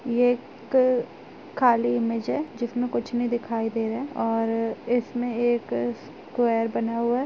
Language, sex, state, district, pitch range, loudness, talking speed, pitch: Hindi, female, Uttar Pradesh, Jyotiba Phule Nagar, 230-245 Hz, -25 LUFS, 155 wpm, 240 Hz